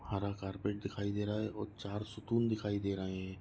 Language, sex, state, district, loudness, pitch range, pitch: Hindi, male, Maharashtra, Nagpur, -38 LUFS, 100-105 Hz, 100 Hz